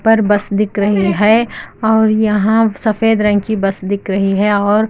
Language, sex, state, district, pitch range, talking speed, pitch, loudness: Hindi, female, Andhra Pradesh, Anantapur, 200-220 Hz, 170 wpm, 210 Hz, -14 LUFS